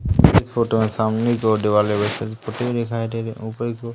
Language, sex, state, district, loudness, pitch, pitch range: Hindi, male, Madhya Pradesh, Umaria, -20 LUFS, 110 Hz, 110-115 Hz